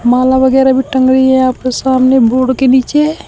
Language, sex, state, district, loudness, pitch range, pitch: Hindi, female, Uttar Pradesh, Shamli, -10 LUFS, 255-265 Hz, 260 Hz